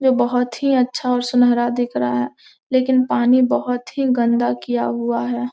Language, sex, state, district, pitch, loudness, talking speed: Hindi, female, Bihar, Gopalganj, 245 Hz, -18 LUFS, 185 wpm